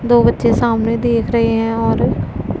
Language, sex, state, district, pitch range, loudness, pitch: Hindi, female, Punjab, Pathankot, 225-235 Hz, -16 LUFS, 230 Hz